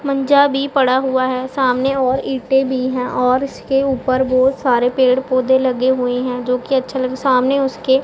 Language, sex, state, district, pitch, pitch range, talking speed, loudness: Hindi, female, Punjab, Pathankot, 260 Hz, 255-270 Hz, 200 wpm, -16 LUFS